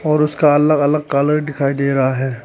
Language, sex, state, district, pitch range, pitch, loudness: Hindi, male, Arunachal Pradesh, Papum Pare, 140-150 Hz, 145 Hz, -16 LUFS